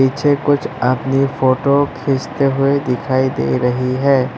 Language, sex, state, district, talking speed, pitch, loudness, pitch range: Hindi, male, Assam, Sonitpur, 135 wpm, 135 Hz, -16 LUFS, 130-140 Hz